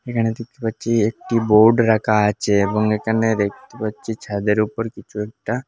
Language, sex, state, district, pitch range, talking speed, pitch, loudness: Bengali, male, Assam, Hailakandi, 105-115 Hz, 160 wpm, 110 Hz, -19 LUFS